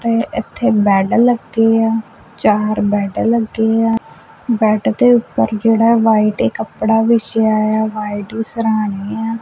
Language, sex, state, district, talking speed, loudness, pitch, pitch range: Punjabi, female, Punjab, Kapurthala, 135 wpm, -15 LUFS, 220 Hz, 210-225 Hz